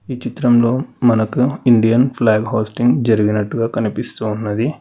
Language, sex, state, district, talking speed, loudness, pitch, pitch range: Telugu, male, Telangana, Hyderabad, 110 wpm, -16 LUFS, 115 Hz, 110-125 Hz